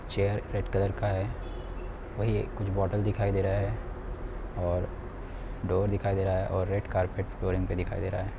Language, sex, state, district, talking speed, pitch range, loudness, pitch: Hindi, male, Bihar, Sitamarhi, 195 wpm, 90-100 Hz, -31 LUFS, 95 Hz